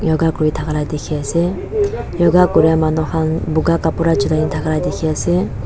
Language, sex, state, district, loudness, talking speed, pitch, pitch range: Nagamese, female, Nagaland, Dimapur, -16 LUFS, 140 wpm, 160 Hz, 150-170 Hz